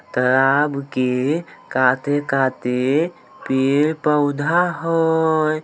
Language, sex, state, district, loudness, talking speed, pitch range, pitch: Maithili, male, Bihar, Samastipur, -19 LUFS, 55 wpm, 130-160 Hz, 145 Hz